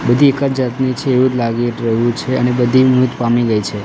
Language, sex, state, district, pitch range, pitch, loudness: Gujarati, male, Gujarat, Gandhinagar, 120-130 Hz, 125 Hz, -15 LUFS